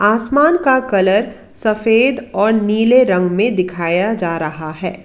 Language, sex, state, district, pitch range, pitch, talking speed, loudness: Hindi, female, Karnataka, Bangalore, 185-235 Hz, 210 Hz, 140 wpm, -14 LUFS